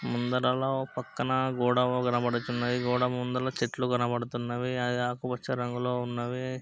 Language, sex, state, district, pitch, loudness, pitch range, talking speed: Telugu, male, Andhra Pradesh, Krishna, 125 Hz, -30 LUFS, 120-125 Hz, 120 wpm